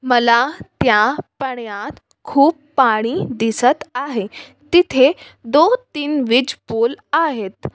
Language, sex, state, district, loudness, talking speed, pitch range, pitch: Marathi, female, Maharashtra, Sindhudurg, -17 LUFS, 85 wpm, 235-295 Hz, 265 Hz